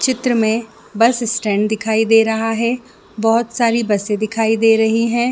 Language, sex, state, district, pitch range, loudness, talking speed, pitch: Hindi, female, Chhattisgarh, Bilaspur, 220-235 Hz, -16 LUFS, 170 wpm, 225 Hz